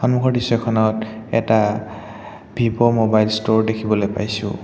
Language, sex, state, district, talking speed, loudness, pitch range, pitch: Assamese, male, Assam, Hailakandi, 105 wpm, -19 LUFS, 105-115 Hz, 110 Hz